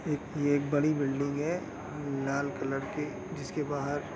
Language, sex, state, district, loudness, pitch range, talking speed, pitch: Hindi, male, Chhattisgarh, Bastar, -32 LUFS, 140-150 Hz, 145 wpm, 145 Hz